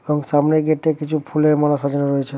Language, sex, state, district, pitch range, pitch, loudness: Bengali, male, West Bengal, Dakshin Dinajpur, 145-155 Hz, 150 Hz, -18 LUFS